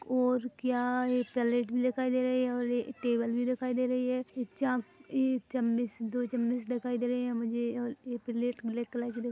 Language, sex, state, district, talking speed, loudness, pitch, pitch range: Hindi, female, Chhattisgarh, Rajnandgaon, 225 wpm, -32 LUFS, 245 Hz, 240-255 Hz